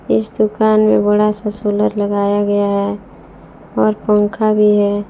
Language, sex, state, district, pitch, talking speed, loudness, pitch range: Hindi, female, Jharkhand, Palamu, 205 Hz, 150 wpm, -15 LUFS, 200-210 Hz